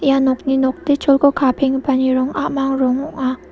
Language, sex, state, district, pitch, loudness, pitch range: Garo, female, Meghalaya, South Garo Hills, 270 Hz, -17 LUFS, 260-275 Hz